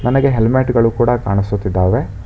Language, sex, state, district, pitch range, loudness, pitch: Kannada, male, Karnataka, Bangalore, 100-125 Hz, -15 LUFS, 115 Hz